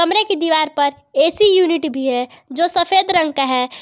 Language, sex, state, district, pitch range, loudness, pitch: Hindi, female, Jharkhand, Garhwa, 275-360 Hz, -15 LUFS, 320 Hz